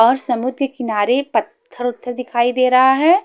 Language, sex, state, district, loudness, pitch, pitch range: Hindi, female, Haryana, Jhajjar, -17 LUFS, 250 Hz, 240-265 Hz